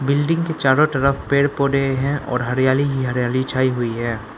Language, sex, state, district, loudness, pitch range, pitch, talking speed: Hindi, male, Arunachal Pradesh, Lower Dibang Valley, -19 LUFS, 125-140 Hz, 135 Hz, 190 wpm